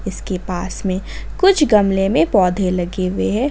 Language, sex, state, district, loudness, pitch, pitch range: Hindi, female, Jharkhand, Ranchi, -17 LUFS, 190 Hz, 180-205 Hz